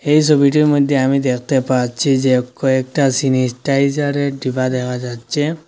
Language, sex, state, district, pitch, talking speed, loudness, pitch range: Bengali, male, Assam, Hailakandi, 135 Hz, 125 wpm, -16 LUFS, 130-145 Hz